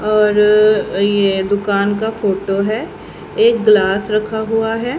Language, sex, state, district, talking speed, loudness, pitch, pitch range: Hindi, female, Haryana, Charkhi Dadri, 130 wpm, -15 LUFS, 210 Hz, 200-220 Hz